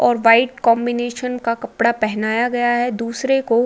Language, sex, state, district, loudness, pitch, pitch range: Hindi, female, Uttar Pradesh, Budaun, -18 LUFS, 240 Hz, 230-245 Hz